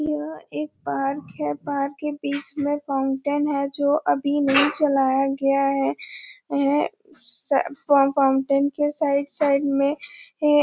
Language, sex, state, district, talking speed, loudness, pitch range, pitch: Hindi, female, Chhattisgarh, Bastar, 135 wpm, -22 LUFS, 275-290 Hz, 280 Hz